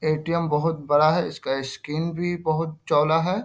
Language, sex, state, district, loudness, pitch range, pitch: Hindi, male, Bihar, Bhagalpur, -23 LUFS, 150-165 Hz, 155 Hz